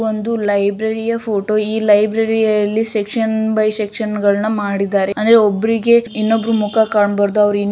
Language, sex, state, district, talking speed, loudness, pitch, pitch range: Kannada, female, Karnataka, Shimoga, 140 wpm, -15 LUFS, 215 Hz, 205-225 Hz